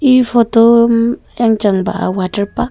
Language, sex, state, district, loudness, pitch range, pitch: Wancho, female, Arunachal Pradesh, Longding, -13 LUFS, 205-235 Hz, 230 Hz